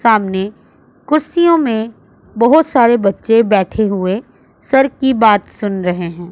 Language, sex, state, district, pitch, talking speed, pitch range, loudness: Hindi, female, Punjab, Pathankot, 225 Hz, 135 wpm, 195-265 Hz, -14 LUFS